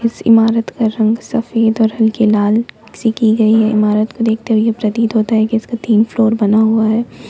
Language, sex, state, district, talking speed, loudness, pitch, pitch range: Hindi, female, Jharkhand, Ranchi, 215 wpm, -14 LUFS, 225 Hz, 220-230 Hz